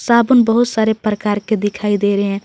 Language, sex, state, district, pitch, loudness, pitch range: Hindi, female, Jharkhand, Garhwa, 215 Hz, -15 LUFS, 205-230 Hz